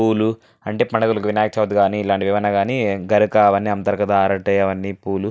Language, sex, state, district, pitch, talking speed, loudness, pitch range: Telugu, male, Andhra Pradesh, Anantapur, 105 Hz, 190 wpm, -18 LUFS, 100-105 Hz